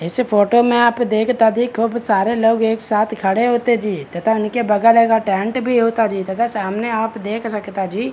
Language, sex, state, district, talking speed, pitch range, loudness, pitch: Hindi, male, Bihar, Begusarai, 205 wpm, 210-235 Hz, -17 LUFS, 225 Hz